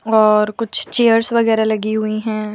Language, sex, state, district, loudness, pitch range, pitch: Hindi, female, Madhya Pradesh, Bhopal, -16 LUFS, 215-225 Hz, 220 Hz